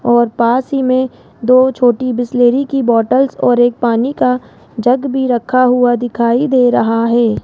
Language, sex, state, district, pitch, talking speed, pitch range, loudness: Hindi, female, Rajasthan, Jaipur, 245 Hz, 170 wpm, 240-255 Hz, -13 LUFS